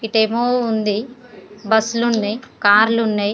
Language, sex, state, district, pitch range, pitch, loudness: Telugu, female, Telangana, Karimnagar, 210-235 Hz, 220 Hz, -17 LUFS